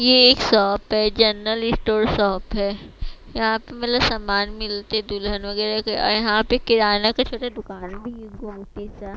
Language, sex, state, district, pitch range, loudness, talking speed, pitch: Hindi, female, Bihar, West Champaran, 205-225 Hz, -20 LUFS, 170 wpm, 215 Hz